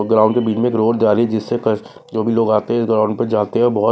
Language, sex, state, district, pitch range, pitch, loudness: Hindi, male, Bihar, Patna, 110-115 Hz, 110 Hz, -17 LUFS